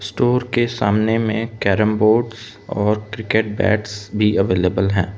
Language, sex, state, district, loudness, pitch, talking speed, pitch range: Hindi, male, Arunachal Pradesh, Lower Dibang Valley, -18 LUFS, 110 Hz, 140 wpm, 105-110 Hz